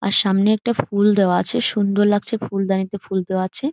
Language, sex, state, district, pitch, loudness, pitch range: Bengali, female, West Bengal, Jhargram, 200 Hz, -19 LUFS, 195-210 Hz